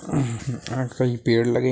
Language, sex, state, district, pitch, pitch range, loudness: Hindi, male, Bihar, Gopalganj, 125 Hz, 120-130 Hz, -24 LUFS